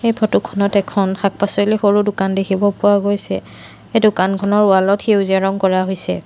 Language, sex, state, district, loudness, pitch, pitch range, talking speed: Assamese, female, Assam, Sonitpur, -16 LUFS, 200 Hz, 195-205 Hz, 165 wpm